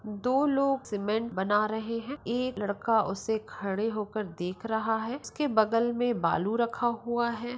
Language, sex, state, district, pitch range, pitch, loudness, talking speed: Hindi, female, Uttar Pradesh, Jyotiba Phule Nagar, 210-240 Hz, 225 Hz, -29 LUFS, 165 wpm